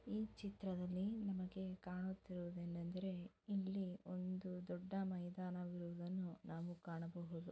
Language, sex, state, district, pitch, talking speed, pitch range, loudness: Kannada, female, Karnataka, Mysore, 180 Hz, 80 wpm, 175-190 Hz, -48 LUFS